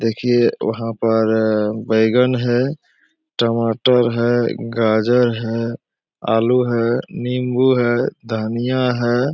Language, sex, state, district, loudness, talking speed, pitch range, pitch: Hindi, male, Bihar, Supaul, -18 LUFS, 95 wpm, 115-125 Hz, 120 Hz